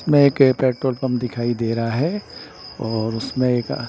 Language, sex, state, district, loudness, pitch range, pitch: Hindi, male, Bihar, Patna, -20 LUFS, 120-135 Hz, 125 Hz